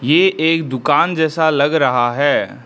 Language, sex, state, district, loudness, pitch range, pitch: Hindi, male, Arunachal Pradesh, Lower Dibang Valley, -15 LUFS, 140-160 Hz, 155 Hz